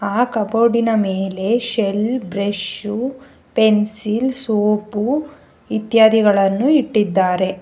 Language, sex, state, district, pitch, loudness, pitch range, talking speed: Kannada, female, Karnataka, Bangalore, 215 Hz, -17 LUFS, 205-235 Hz, 70 wpm